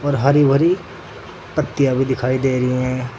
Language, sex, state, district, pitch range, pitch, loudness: Hindi, male, Uttar Pradesh, Saharanpur, 130-140 Hz, 135 Hz, -18 LUFS